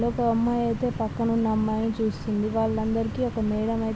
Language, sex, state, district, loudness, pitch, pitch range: Telugu, female, Telangana, Nalgonda, -25 LUFS, 225 Hz, 220-230 Hz